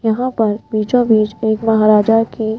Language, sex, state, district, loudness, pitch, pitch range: Hindi, female, Rajasthan, Jaipur, -14 LUFS, 220 Hz, 215-225 Hz